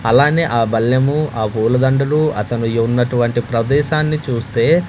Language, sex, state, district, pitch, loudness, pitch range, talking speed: Telugu, male, Andhra Pradesh, Manyam, 125 Hz, -16 LUFS, 115-150 Hz, 110 wpm